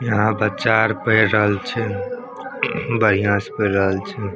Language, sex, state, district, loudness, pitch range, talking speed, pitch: Maithili, male, Bihar, Samastipur, -19 LUFS, 100-115 Hz, 150 wpm, 105 Hz